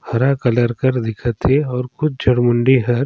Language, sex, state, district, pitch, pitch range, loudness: Surgujia, male, Chhattisgarh, Sarguja, 125 Hz, 120-130 Hz, -17 LUFS